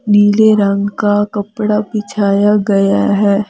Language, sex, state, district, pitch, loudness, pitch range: Hindi, female, Delhi, New Delhi, 205 Hz, -13 LUFS, 200-210 Hz